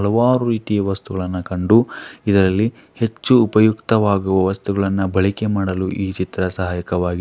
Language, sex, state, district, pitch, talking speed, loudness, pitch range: Kannada, male, Karnataka, Dharwad, 100 Hz, 110 wpm, -18 LUFS, 95-110 Hz